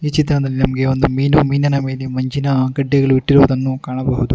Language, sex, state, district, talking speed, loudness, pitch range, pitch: Kannada, male, Karnataka, Bangalore, 140 wpm, -16 LUFS, 130-140 Hz, 135 Hz